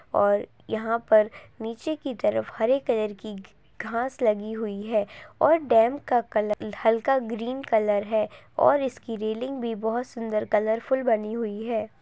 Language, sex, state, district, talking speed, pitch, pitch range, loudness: Hindi, female, Uttar Pradesh, Budaun, 160 wpm, 225 Hz, 215-250 Hz, -25 LUFS